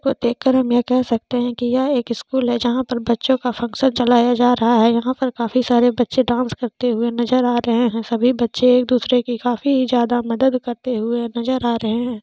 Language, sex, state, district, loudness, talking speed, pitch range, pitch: Hindi, female, Jharkhand, Sahebganj, -18 LUFS, 235 wpm, 235-255 Hz, 245 Hz